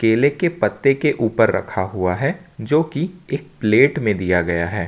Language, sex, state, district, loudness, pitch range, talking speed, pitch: Hindi, male, Jharkhand, Ranchi, -19 LUFS, 105-150 Hz, 195 wpm, 120 Hz